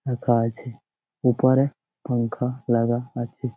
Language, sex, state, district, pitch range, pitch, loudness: Bengali, male, West Bengal, Jalpaiguri, 120-130 Hz, 125 Hz, -23 LUFS